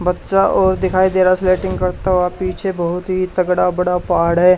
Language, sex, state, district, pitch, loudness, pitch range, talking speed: Hindi, male, Haryana, Charkhi Dadri, 185 Hz, -16 LUFS, 180-185 Hz, 195 wpm